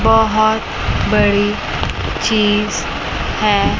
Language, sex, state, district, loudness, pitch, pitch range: Hindi, male, Chandigarh, Chandigarh, -16 LUFS, 215 Hz, 205-220 Hz